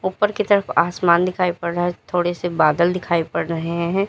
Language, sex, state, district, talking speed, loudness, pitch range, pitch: Hindi, female, Uttar Pradesh, Lalitpur, 220 wpm, -19 LUFS, 170-185 Hz, 175 Hz